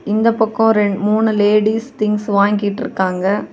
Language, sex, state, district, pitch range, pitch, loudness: Tamil, female, Tamil Nadu, Kanyakumari, 205-220 Hz, 210 Hz, -16 LUFS